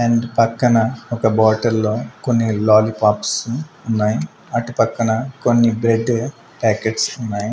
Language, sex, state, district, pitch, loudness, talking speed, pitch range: Telugu, male, Andhra Pradesh, Manyam, 115 Hz, -18 LUFS, 105 wpm, 110-120 Hz